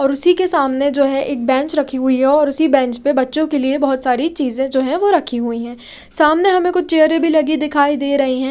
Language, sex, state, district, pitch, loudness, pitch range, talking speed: Hindi, female, Haryana, Rohtak, 280 Hz, -15 LUFS, 265-310 Hz, 260 wpm